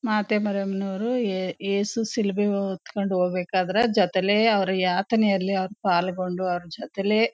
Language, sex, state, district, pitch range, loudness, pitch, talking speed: Kannada, female, Karnataka, Chamarajanagar, 185-215 Hz, -24 LUFS, 195 Hz, 130 wpm